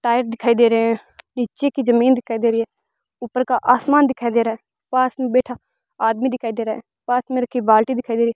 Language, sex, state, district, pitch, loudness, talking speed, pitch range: Hindi, female, Rajasthan, Bikaner, 245 Hz, -19 LUFS, 245 wpm, 230-255 Hz